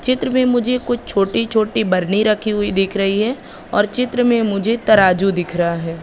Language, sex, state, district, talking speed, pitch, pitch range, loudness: Hindi, female, Madhya Pradesh, Katni, 200 wpm, 215 Hz, 195-240 Hz, -17 LUFS